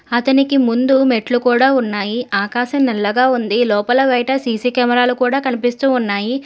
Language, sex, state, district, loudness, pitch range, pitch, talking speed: Telugu, female, Telangana, Hyderabad, -15 LUFS, 235-260 Hz, 245 Hz, 150 wpm